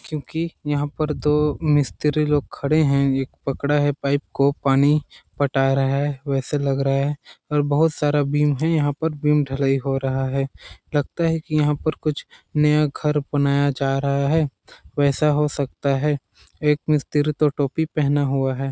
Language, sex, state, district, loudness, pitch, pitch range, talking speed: Hindi, male, Chhattisgarh, Sarguja, -21 LUFS, 145 Hz, 140-150 Hz, 185 wpm